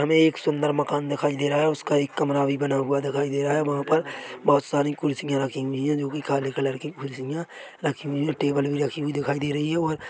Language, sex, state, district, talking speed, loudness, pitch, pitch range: Hindi, male, Chhattisgarh, Korba, 260 wpm, -25 LUFS, 145 Hz, 140-150 Hz